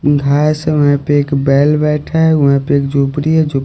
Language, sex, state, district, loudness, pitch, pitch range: Hindi, male, Haryana, Rohtak, -13 LUFS, 145 Hz, 140-150 Hz